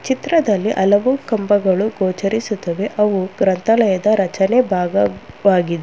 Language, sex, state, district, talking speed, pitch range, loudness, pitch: Kannada, female, Karnataka, Bangalore, 80 wpm, 185-215 Hz, -17 LUFS, 200 Hz